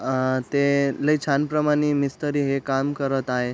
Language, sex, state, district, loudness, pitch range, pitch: Marathi, male, Maharashtra, Aurangabad, -23 LUFS, 135-145 Hz, 140 Hz